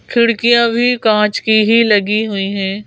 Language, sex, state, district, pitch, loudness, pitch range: Hindi, female, Madhya Pradesh, Bhopal, 220 Hz, -13 LUFS, 210-235 Hz